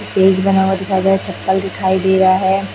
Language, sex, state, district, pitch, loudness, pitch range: Hindi, female, Chhattisgarh, Raipur, 190 Hz, -15 LUFS, 190-195 Hz